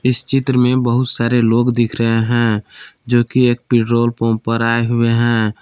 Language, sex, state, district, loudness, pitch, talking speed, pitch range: Hindi, male, Jharkhand, Palamu, -15 LUFS, 120 Hz, 190 wpm, 115-125 Hz